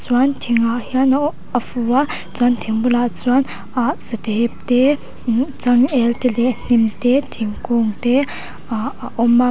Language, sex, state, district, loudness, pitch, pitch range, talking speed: Mizo, female, Mizoram, Aizawl, -18 LUFS, 245 Hz, 235-255 Hz, 170 wpm